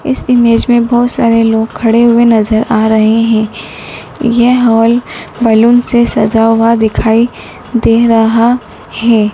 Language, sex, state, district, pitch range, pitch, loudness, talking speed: Hindi, male, Madhya Pradesh, Dhar, 225-240 Hz, 230 Hz, -9 LUFS, 140 wpm